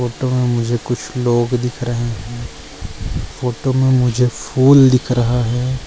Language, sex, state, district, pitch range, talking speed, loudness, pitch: Hindi, male, Goa, North and South Goa, 120-125 Hz, 155 wpm, -16 LUFS, 125 Hz